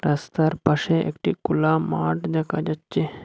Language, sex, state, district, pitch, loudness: Bengali, male, Assam, Hailakandi, 150 Hz, -23 LUFS